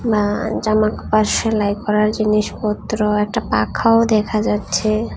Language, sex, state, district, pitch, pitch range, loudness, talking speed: Bengali, female, Tripura, West Tripura, 215 Hz, 210-215 Hz, -18 LUFS, 115 wpm